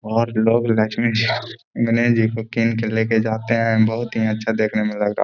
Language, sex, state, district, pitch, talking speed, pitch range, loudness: Hindi, male, Bihar, Gaya, 115 Hz, 230 wpm, 110-115 Hz, -19 LUFS